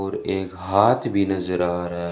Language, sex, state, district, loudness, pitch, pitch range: Hindi, male, Rajasthan, Bikaner, -22 LUFS, 90 Hz, 90-95 Hz